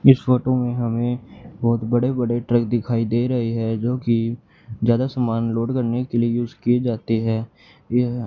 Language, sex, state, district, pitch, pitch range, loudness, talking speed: Hindi, male, Haryana, Charkhi Dadri, 120 Hz, 115-125 Hz, -21 LUFS, 175 wpm